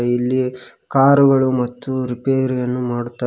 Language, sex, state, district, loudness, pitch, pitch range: Kannada, male, Karnataka, Koppal, -18 LUFS, 125 Hz, 125-130 Hz